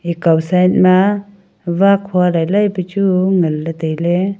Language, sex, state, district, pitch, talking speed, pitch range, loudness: Wancho, female, Arunachal Pradesh, Longding, 185 Hz, 125 wpm, 170-195 Hz, -14 LUFS